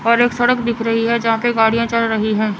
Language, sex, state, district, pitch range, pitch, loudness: Hindi, female, Chandigarh, Chandigarh, 225-235 Hz, 230 Hz, -16 LUFS